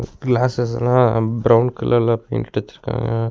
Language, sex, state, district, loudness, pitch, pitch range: Tamil, male, Tamil Nadu, Nilgiris, -18 LUFS, 120 Hz, 115-125 Hz